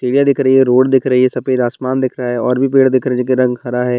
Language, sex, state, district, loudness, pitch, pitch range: Hindi, male, Bihar, Bhagalpur, -14 LUFS, 130 Hz, 125-130 Hz